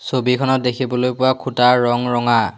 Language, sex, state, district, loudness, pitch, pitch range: Assamese, male, Assam, Hailakandi, -17 LUFS, 125 Hz, 125-130 Hz